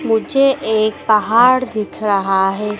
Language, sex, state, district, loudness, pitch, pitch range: Hindi, female, Madhya Pradesh, Dhar, -15 LUFS, 215 Hz, 210-240 Hz